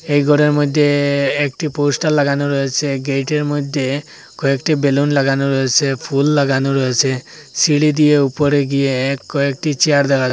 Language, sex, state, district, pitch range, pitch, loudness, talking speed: Bengali, male, Assam, Hailakandi, 135-150 Hz, 140 Hz, -16 LUFS, 135 wpm